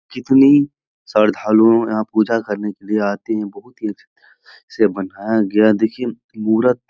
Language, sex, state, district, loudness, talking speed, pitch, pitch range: Hindi, male, Bihar, Jahanabad, -17 LUFS, 155 wpm, 110 Hz, 105-115 Hz